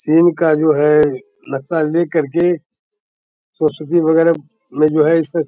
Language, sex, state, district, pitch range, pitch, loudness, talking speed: Hindi, male, Bihar, Bhagalpur, 155-170 Hz, 160 Hz, -15 LUFS, 155 wpm